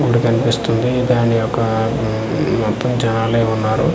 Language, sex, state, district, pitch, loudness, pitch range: Telugu, male, Andhra Pradesh, Manyam, 115 Hz, -17 LUFS, 110-120 Hz